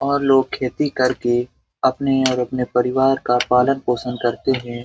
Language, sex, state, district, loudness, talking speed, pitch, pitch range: Hindi, male, Bihar, Jamui, -19 LUFS, 160 wpm, 130 Hz, 125-135 Hz